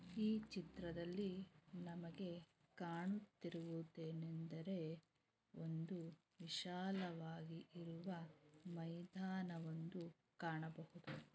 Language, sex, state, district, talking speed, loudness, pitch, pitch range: Kannada, female, Karnataka, Mysore, 65 wpm, -50 LUFS, 170 Hz, 165-180 Hz